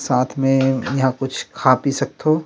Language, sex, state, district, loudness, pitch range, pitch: Chhattisgarhi, male, Chhattisgarh, Rajnandgaon, -19 LUFS, 130-140 Hz, 135 Hz